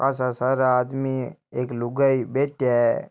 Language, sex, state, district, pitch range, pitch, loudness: Marwari, male, Rajasthan, Nagaur, 125-135 Hz, 130 Hz, -23 LUFS